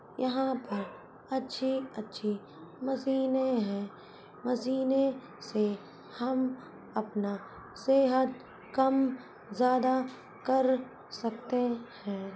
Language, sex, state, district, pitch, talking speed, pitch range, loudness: Hindi, female, Uttar Pradesh, Budaun, 255 Hz, 75 wpm, 215-265 Hz, -31 LUFS